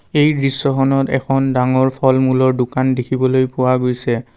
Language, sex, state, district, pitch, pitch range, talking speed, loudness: Assamese, male, Assam, Kamrup Metropolitan, 130 Hz, 130-135 Hz, 135 wpm, -16 LUFS